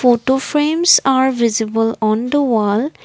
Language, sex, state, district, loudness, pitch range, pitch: English, female, Assam, Kamrup Metropolitan, -15 LUFS, 225-285 Hz, 250 Hz